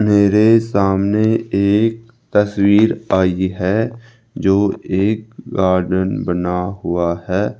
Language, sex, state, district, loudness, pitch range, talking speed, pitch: Hindi, male, Rajasthan, Jaipur, -16 LUFS, 95-110 Hz, 95 wpm, 100 Hz